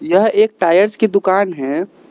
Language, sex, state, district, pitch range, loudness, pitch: Hindi, male, Arunachal Pradesh, Lower Dibang Valley, 185-215 Hz, -15 LUFS, 200 Hz